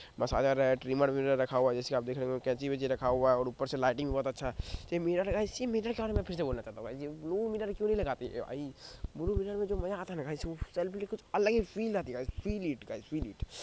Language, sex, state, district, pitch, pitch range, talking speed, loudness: Hindi, male, Bihar, Madhepura, 140 Hz, 130-200 Hz, 290 wpm, -34 LUFS